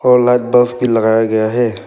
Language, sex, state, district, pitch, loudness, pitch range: Hindi, male, Arunachal Pradesh, Papum Pare, 120 Hz, -13 LUFS, 110-125 Hz